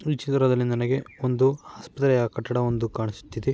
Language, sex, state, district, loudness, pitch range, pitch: Kannada, male, Karnataka, Mysore, -25 LUFS, 115-135 Hz, 125 Hz